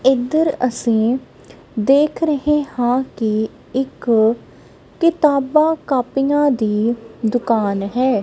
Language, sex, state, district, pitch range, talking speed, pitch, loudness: Punjabi, female, Punjab, Kapurthala, 230-290 Hz, 85 wpm, 255 Hz, -18 LUFS